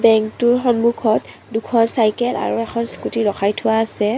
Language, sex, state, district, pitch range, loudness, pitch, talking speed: Assamese, female, Assam, Kamrup Metropolitan, 220-235 Hz, -18 LUFS, 225 Hz, 145 wpm